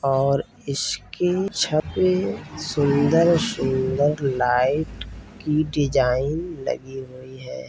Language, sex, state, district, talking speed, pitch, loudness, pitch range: Hindi, male, Uttar Pradesh, Varanasi, 85 wpm, 140 Hz, -22 LUFS, 130-155 Hz